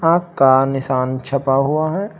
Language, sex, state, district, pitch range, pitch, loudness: Hindi, male, Uttar Pradesh, Shamli, 135-165 Hz, 140 Hz, -17 LUFS